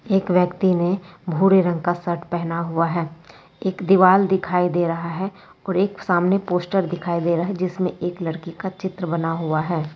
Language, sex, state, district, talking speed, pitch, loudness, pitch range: Hindi, female, West Bengal, Jalpaiguri, 185 wpm, 175 Hz, -21 LUFS, 170-190 Hz